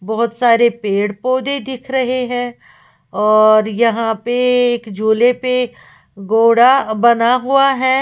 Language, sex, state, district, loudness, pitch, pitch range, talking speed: Hindi, female, Uttar Pradesh, Lalitpur, -14 LUFS, 240 Hz, 220-255 Hz, 125 wpm